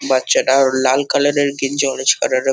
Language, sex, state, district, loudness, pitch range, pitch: Bengali, male, West Bengal, Kolkata, -15 LUFS, 130-140 Hz, 135 Hz